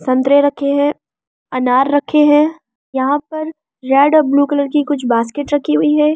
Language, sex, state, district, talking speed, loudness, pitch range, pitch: Hindi, female, Delhi, New Delhi, 205 wpm, -14 LUFS, 275-300 Hz, 285 Hz